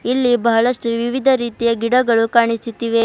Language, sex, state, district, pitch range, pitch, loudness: Kannada, female, Karnataka, Bidar, 230-245 Hz, 235 Hz, -16 LUFS